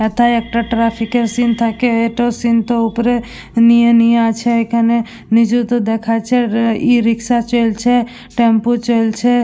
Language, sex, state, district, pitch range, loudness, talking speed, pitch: Bengali, female, West Bengal, Dakshin Dinajpur, 230-240 Hz, -14 LUFS, 140 wpm, 235 Hz